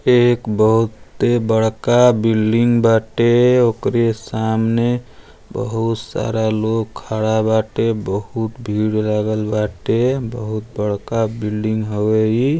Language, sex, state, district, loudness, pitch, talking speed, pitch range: Bhojpuri, male, Uttar Pradesh, Deoria, -17 LUFS, 110 Hz, 100 wpm, 110-115 Hz